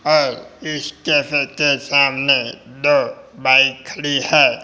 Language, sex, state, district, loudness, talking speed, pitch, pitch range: Hindi, male, Rajasthan, Jaipur, -16 LUFS, 115 wpm, 145 Hz, 135-155 Hz